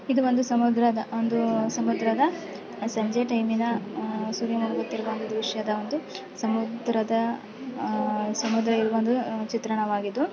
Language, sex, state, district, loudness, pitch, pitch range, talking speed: Kannada, female, Karnataka, Shimoga, -26 LUFS, 225 Hz, 220-235 Hz, 105 wpm